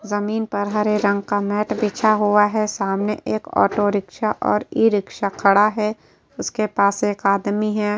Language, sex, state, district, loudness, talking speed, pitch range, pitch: Hindi, female, Uttar Pradesh, Etah, -20 LUFS, 165 wpm, 200-215 Hz, 205 Hz